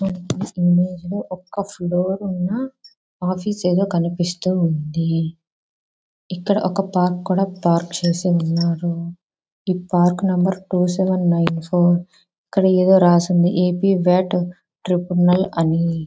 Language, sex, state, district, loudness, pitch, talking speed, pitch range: Telugu, female, Andhra Pradesh, Visakhapatnam, -19 LUFS, 180 Hz, 95 wpm, 175-185 Hz